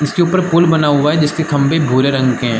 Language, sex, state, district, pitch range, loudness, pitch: Hindi, male, Chhattisgarh, Bastar, 135-160 Hz, -13 LUFS, 150 Hz